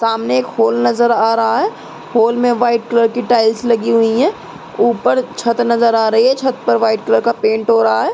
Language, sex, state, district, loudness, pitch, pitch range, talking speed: Hindi, female, Uttar Pradesh, Muzaffarnagar, -14 LUFS, 230 Hz, 225-240 Hz, 230 wpm